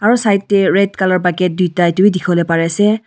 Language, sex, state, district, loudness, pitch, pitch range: Nagamese, female, Nagaland, Kohima, -14 LUFS, 185 Hz, 180-205 Hz